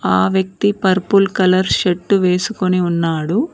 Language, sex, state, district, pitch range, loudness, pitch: Telugu, female, Telangana, Mahabubabad, 180-195 Hz, -16 LUFS, 185 Hz